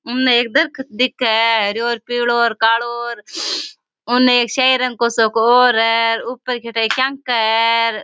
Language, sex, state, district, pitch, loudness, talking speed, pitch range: Rajasthani, female, Rajasthan, Churu, 235 Hz, -16 LUFS, 165 wpm, 230-250 Hz